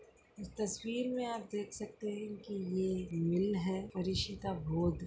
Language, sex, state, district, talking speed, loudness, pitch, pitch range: Hindi, female, Chhattisgarh, Bastar, 155 wpm, -37 LUFS, 200 Hz, 185-215 Hz